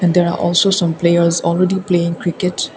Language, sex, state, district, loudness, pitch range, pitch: English, female, Assam, Kamrup Metropolitan, -15 LUFS, 170-180 Hz, 175 Hz